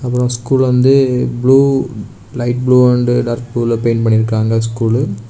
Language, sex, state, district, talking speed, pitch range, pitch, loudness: Tamil, male, Tamil Nadu, Kanyakumari, 160 wpm, 115-125 Hz, 120 Hz, -13 LUFS